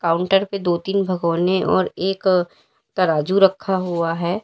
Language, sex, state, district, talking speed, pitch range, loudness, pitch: Hindi, female, Uttar Pradesh, Lalitpur, 150 wpm, 170-195 Hz, -19 LUFS, 185 Hz